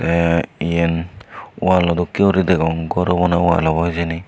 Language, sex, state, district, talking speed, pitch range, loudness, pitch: Chakma, male, Tripura, Unakoti, 155 wpm, 85-90 Hz, -17 LUFS, 85 Hz